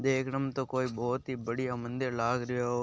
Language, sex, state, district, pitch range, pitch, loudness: Marwari, male, Rajasthan, Nagaur, 120-130 Hz, 125 Hz, -33 LUFS